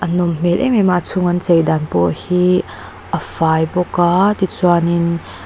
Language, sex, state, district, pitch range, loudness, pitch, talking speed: Mizo, female, Mizoram, Aizawl, 170-180 Hz, -16 LUFS, 175 Hz, 185 wpm